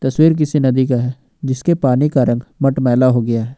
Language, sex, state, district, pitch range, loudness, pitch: Hindi, male, Jharkhand, Ranchi, 125-140 Hz, -15 LUFS, 130 Hz